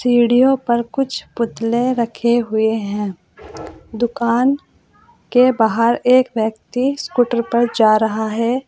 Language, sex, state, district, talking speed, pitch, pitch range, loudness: Hindi, female, Uttar Pradesh, Saharanpur, 115 wpm, 235 Hz, 225-250 Hz, -17 LUFS